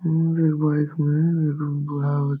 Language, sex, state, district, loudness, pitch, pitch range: Hindi, male, Bihar, Jamui, -22 LUFS, 150 Hz, 145-160 Hz